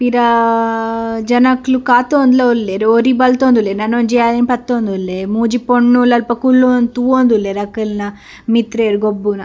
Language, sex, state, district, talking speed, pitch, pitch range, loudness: Tulu, female, Karnataka, Dakshina Kannada, 125 wpm, 235 Hz, 220-245 Hz, -13 LUFS